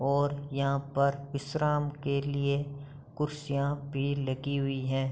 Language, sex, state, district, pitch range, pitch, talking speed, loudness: Hindi, male, Uttar Pradesh, Hamirpur, 140-145 Hz, 140 Hz, 130 wpm, -31 LUFS